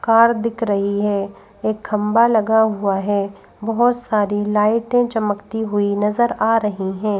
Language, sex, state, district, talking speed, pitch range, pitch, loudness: Hindi, female, Madhya Pradesh, Bhopal, 150 wpm, 205-225 Hz, 215 Hz, -18 LUFS